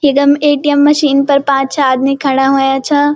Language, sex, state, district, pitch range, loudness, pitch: Garhwali, female, Uttarakhand, Uttarkashi, 270-290 Hz, -11 LUFS, 280 Hz